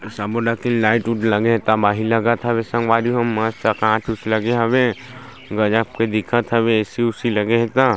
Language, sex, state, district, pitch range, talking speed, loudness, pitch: Chhattisgarhi, male, Chhattisgarh, Sarguja, 110-120 Hz, 195 wpm, -18 LUFS, 115 Hz